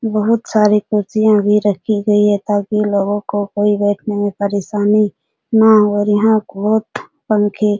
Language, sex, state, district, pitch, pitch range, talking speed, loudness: Hindi, female, Bihar, Supaul, 210 Hz, 205-215 Hz, 145 wpm, -15 LUFS